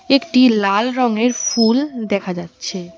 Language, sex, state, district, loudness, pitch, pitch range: Bengali, female, West Bengal, Alipurduar, -16 LUFS, 225 Hz, 195-250 Hz